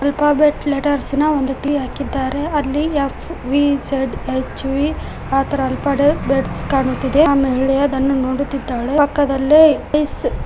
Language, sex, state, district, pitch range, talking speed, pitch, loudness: Kannada, female, Karnataka, Koppal, 270-290 Hz, 130 wpm, 280 Hz, -17 LUFS